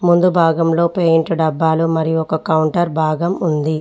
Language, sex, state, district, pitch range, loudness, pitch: Telugu, female, Telangana, Mahabubabad, 160-170 Hz, -16 LUFS, 165 Hz